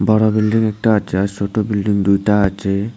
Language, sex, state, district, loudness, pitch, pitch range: Bengali, male, Tripura, West Tripura, -16 LUFS, 105 Hz, 100-110 Hz